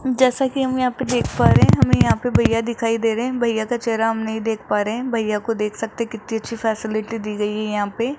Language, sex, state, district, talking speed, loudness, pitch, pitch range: Hindi, male, Rajasthan, Jaipur, 285 wpm, -20 LUFS, 225 Hz, 210-235 Hz